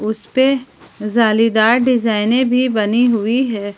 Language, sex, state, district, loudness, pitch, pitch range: Hindi, female, Jharkhand, Ranchi, -15 LUFS, 230 Hz, 215-250 Hz